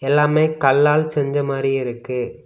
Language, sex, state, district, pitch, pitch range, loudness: Tamil, male, Tamil Nadu, Kanyakumari, 140 Hz, 135-150 Hz, -18 LUFS